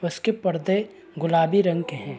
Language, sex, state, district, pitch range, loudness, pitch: Hindi, male, Uttar Pradesh, Varanasi, 165-195 Hz, -23 LUFS, 175 Hz